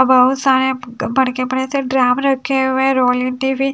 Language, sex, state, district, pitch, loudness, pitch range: Hindi, female, Haryana, Charkhi Dadri, 260 Hz, -16 LUFS, 255-265 Hz